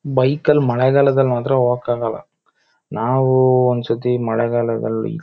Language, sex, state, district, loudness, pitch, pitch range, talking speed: Kannada, male, Karnataka, Shimoga, -17 LUFS, 125 Hz, 120-130 Hz, 115 wpm